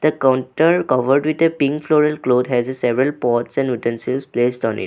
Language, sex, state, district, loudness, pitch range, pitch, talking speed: English, male, Assam, Sonitpur, -18 LUFS, 125-150 Hz, 130 Hz, 195 wpm